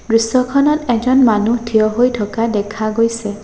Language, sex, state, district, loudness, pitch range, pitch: Assamese, female, Assam, Sonitpur, -15 LUFS, 215-250 Hz, 230 Hz